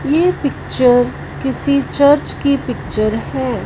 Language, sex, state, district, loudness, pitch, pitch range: Hindi, female, Punjab, Fazilka, -16 LUFS, 280 Hz, 250-285 Hz